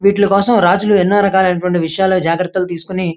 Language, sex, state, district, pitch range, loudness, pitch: Telugu, male, Andhra Pradesh, Krishna, 180-200 Hz, -13 LUFS, 185 Hz